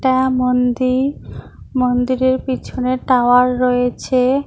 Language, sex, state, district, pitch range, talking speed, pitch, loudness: Bengali, female, West Bengal, Cooch Behar, 250-260 Hz, 80 wpm, 255 Hz, -16 LUFS